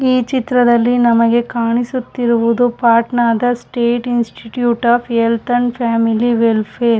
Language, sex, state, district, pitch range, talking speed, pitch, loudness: Kannada, female, Karnataka, Shimoga, 230-245 Hz, 120 wpm, 240 Hz, -15 LUFS